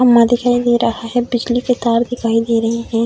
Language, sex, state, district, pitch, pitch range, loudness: Hindi, female, Bihar, Darbhanga, 240 Hz, 230-245 Hz, -15 LUFS